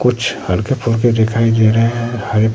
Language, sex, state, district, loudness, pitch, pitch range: Hindi, male, Bihar, Katihar, -15 LUFS, 115 Hz, 110-120 Hz